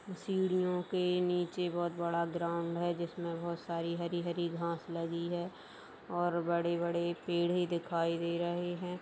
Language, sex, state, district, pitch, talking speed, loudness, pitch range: Hindi, female, Uttar Pradesh, Jalaun, 170 Hz, 165 wpm, -35 LUFS, 170-175 Hz